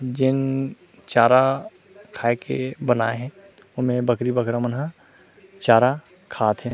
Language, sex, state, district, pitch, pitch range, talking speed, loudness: Chhattisgarhi, male, Chhattisgarh, Rajnandgaon, 130 Hz, 120-155 Hz, 115 wpm, -21 LUFS